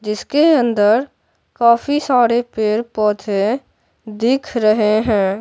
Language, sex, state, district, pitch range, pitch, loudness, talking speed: Hindi, male, Bihar, Patna, 215-245 Hz, 225 Hz, -16 LUFS, 90 wpm